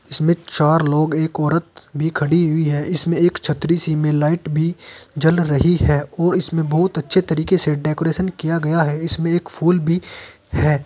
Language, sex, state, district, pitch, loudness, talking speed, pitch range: Hindi, male, Uttar Pradesh, Saharanpur, 160 Hz, -18 LUFS, 190 wpm, 150-170 Hz